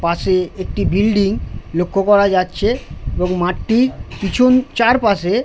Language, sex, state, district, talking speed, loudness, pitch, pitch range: Bengali, male, West Bengal, Jhargram, 120 wpm, -16 LUFS, 195 Hz, 180-225 Hz